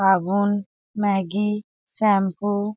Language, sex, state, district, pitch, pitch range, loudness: Hindi, female, Chhattisgarh, Balrampur, 205 Hz, 195-210 Hz, -22 LUFS